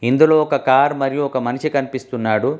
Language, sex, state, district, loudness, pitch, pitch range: Telugu, male, Telangana, Hyderabad, -17 LUFS, 135 Hz, 130-145 Hz